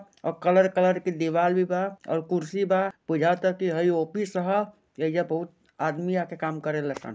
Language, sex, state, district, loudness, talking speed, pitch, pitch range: Bhojpuri, male, Jharkhand, Sahebganj, -26 LUFS, 195 wpm, 180 Hz, 160-185 Hz